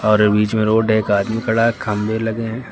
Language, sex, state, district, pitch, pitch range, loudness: Hindi, male, Uttar Pradesh, Lucknow, 110 Hz, 105-115 Hz, -17 LUFS